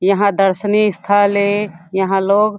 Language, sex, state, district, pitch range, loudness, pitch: Chhattisgarhi, female, Chhattisgarh, Jashpur, 195-205 Hz, -15 LUFS, 200 Hz